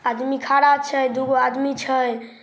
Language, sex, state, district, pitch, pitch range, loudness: Maithili, female, Bihar, Samastipur, 265 Hz, 250-275 Hz, -20 LUFS